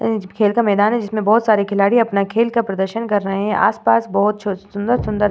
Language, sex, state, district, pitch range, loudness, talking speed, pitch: Hindi, female, Uttar Pradesh, Varanasi, 200-225 Hz, -17 LUFS, 250 wpm, 210 Hz